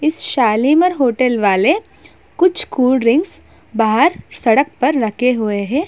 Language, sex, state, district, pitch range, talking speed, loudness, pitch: Hindi, female, Uttar Pradesh, Budaun, 225-310 Hz, 135 wpm, -15 LUFS, 255 Hz